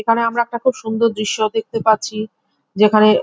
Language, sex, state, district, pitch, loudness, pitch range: Bengali, female, West Bengal, Jhargram, 220 Hz, -17 LUFS, 215-230 Hz